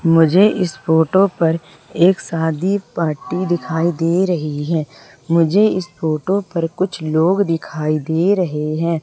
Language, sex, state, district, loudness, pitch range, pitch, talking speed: Hindi, female, Madhya Pradesh, Umaria, -17 LUFS, 160-185 Hz, 165 Hz, 140 wpm